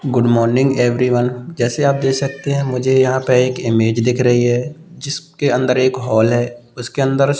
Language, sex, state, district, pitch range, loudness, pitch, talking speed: Hindi, male, Madhya Pradesh, Katni, 120-140 Hz, -16 LUFS, 125 Hz, 195 wpm